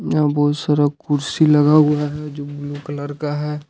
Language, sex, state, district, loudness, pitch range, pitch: Hindi, male, Jharkhand, Ranchi, -18 LUFS, 145-150 Hz, 150 Hz